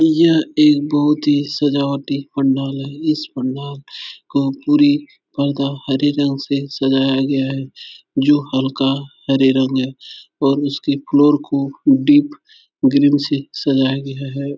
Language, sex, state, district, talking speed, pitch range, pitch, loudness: Hindi, male, Uttar Pradesh, Etah, 135 wpm, 135-150 Hz, 140 Hz, -17 LUFS